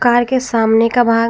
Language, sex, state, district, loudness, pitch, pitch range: Hindi, female, Jharkhand, Garhwa, -14 LUFS, 235 Hz, 230-245 Hz